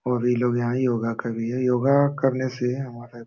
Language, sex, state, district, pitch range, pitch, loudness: Hindi, male, Uttar Pradesh, Jalaun, 120-130 Hz, 125 Hz, -23 LUFS